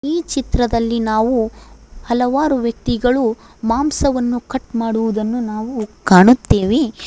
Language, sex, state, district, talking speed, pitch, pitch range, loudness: Kannada, female, Karnataka, Koppal, 85 wpm, 235 Hz, 225-260 Hz, -17 LUFS